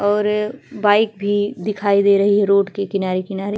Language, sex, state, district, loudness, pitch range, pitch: Hindi, female, Bihar, Vaishali, -18 LUFS, 200-210 Hz, 205 Hz